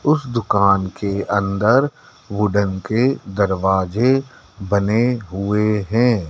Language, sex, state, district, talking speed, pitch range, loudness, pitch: Hindi, male, Madhya Pradesh, Dhar, 95 wpm, 100-120 Hz, -18 LUFS, 105 Hz